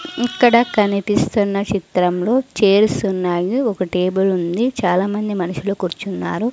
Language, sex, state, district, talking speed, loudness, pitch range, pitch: Telugu, female, Andhra Pradesh, Sri Satya Sai, 90 wpm, -18 LUFS, 185-230 Hz, 200 Hz